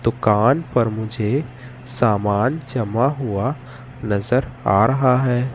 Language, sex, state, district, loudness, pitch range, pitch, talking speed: Hindi, male, Madhya Pradesh, Katni, -19 LUFS, 110-130 Hz, 125 Hz, 110 wpm